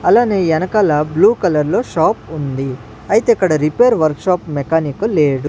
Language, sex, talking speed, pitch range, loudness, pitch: Telugu, male, 155 wpm, 145-185 Hz, -15 LUFS, 155 Hz